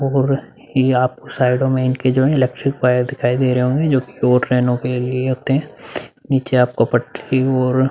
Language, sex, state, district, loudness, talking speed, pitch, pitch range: Hindi, male, Uttar Pradesh, Budaun, -17 LUFS, 195 wpm, 130 Hz, 125-135 Hz